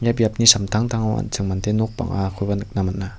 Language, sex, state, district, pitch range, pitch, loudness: Garo, male, Meghalaya, West Garo Hills, 100-115 Hz, 105 Hz, -20 LUFS